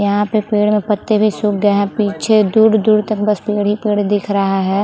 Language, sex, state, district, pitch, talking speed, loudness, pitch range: Hindi, female, Chhattisgarh, Bilaspur, 210 Hz, 235 wpm, -15 LUFS, 205-215 Hz